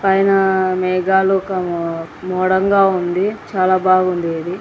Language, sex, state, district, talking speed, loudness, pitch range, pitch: Telugu, female, Andhra Pradesh, Anantapur, 80 wpm, -16 LUFS, 180-195 Hz, 185 Hz